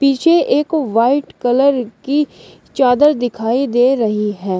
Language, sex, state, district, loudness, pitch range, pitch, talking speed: Hindi, female, Uttar Pradesh, Shamli, -15 LUFS, 230-280 Hz, 260 Hz, 130 wpm